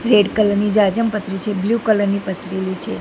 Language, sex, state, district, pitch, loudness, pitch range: Gujarati, female, Gujarat, Gandhinagar, 205 Hz, -18 LUFS, 195-215 Hz